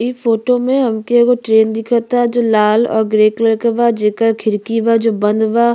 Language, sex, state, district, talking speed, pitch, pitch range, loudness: Bhojpuri, female, Uttar Pradesh, Gorakhpur, 210 wpm, 230 Hz, 220-235 Hz, -14 LUFS